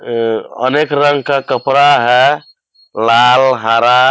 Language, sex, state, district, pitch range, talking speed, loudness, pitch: Hindi, male, Bihar, Purnia, 120-145 Hz, 130 wpm, -11 LUFS, 130 Hz